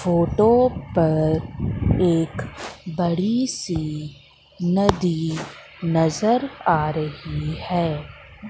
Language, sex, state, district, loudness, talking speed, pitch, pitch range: Hindi, female, Madhya Pradesh, Katni, -22 LUFS, 70 wpm, 170 Hz, 155-185 Hz